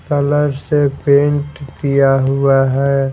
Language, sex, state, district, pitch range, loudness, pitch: Hindi, male, Bihar, Patna, 135-145 Hz, -14 LUFS, 140 Hz